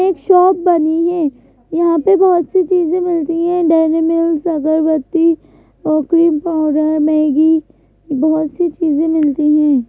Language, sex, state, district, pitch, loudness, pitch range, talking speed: Hindi, female, Madhya Pradesh, Bhopal, 325 Hz, -14 LUFS, 310-340 Hz, 140 wpm